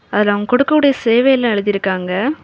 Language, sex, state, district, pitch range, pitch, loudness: Tamil, female, Tamil Nadu, Kanyakumari, 205-265 Hz, 230 Hz, -15 LUFS